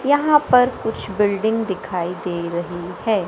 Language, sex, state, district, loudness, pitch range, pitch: Hindi, male, Madhya Pradesh, Katni, -20 LUFS, 175-240 Hz, 205 Hz